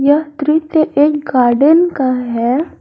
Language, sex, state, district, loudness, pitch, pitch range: Hindi, female, Jharkhand, Garhwa, -13 LUFS, 290 Hz, 255-310 Hz